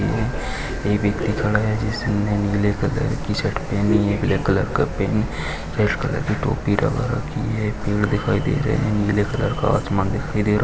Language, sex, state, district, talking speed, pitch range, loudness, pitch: Hindi, male, Bihar, Lakhisarai, 190 wpm, 105-130 Hz, -21 LUFS, 105 Hz